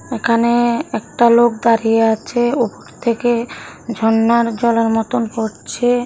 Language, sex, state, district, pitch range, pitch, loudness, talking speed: Bengali, female, Tripura, South Tripura, 225-240 Hz, 235 Hz, -16 LUFS, 110 wpm